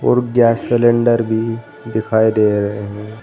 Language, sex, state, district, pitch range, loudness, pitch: Hindi, male, Uttar Pradesh, Saharanpur, 110-120 Hz, -16 LUFS, 110 Hz